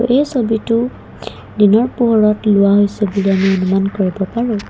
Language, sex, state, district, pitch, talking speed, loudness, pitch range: Assamese, female, Assam, Kamrup Metropolitan, 210 Hz, 140 wpm, -14 LUFS, 195-235 Hz